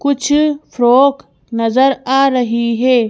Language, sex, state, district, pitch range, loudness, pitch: Hindi, female, Madhya Pradesh, Bhopal, 240-280 Hz, -13 LUFS, 260 Hz